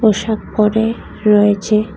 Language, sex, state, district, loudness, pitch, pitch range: Bengali, female, Tripura, West Tripura, -15 LUFS, 215 Hz, 210-220 Hz